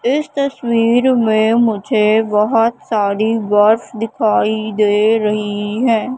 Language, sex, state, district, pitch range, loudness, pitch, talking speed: Hindi, female, Madhya Pradesh, Katni, 210-235 Hz, -15 LUFS, 220 Hz, 105 wpm